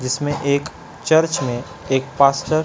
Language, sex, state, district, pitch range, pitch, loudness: Hindi, male, Chhattisgarh, Raipur, 130-155 Hz, 140 Hz, -19 LUFS